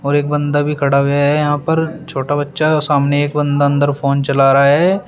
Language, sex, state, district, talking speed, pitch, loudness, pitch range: Hindi, male, Uttar Pradesh, Shamli, 225 wpm, 145 Hz, -14 LUFS, 140-150 Hz